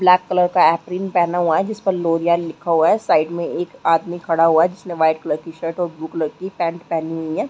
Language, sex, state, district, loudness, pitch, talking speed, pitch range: Hindi, female, Chhattisgarh, Balrampur, -19 LUFS, 170 Hz, 250 wpm, 165-180 Hz